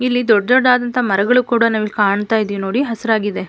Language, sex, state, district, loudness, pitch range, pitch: Kannada, female, Karnataka, Mysore, -15 LUFS, 205-250 Hz, 225 Hz